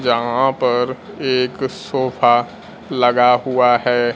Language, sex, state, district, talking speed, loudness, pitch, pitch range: Hindi, male, Bihar, Kaimur, 100 wpm, -17 LUFS, 125 Hz, 120-130 Hz